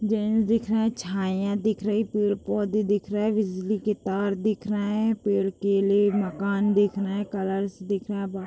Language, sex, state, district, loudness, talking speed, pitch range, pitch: Hindi, female, Jharkhand, Jamtara, -25 LUFS, 210 wpm, 195-215 Hz, 205 Hz